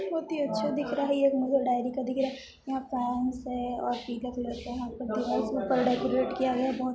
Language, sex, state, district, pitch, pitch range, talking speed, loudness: Hindi, female, Chhattisgarh, Sarguja, 255 Hz, 245-270 Hz, 250 wpm, -30 LUFS